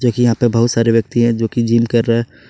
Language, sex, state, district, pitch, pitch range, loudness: Hindi, male, Jharkhand, Ranchi, 115 Hz, 115-120 Hz, -15 LUFS